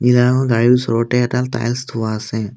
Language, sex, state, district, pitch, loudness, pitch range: Assamese, male, Assam, Kamrup Metropolitan, 120 Hz, -17 LUFS, 115-125 Hz